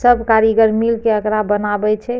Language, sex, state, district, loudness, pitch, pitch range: Maithili, female, Bihar, Madhepura, -15 LUFS, 220 Hz, 215-230 Hz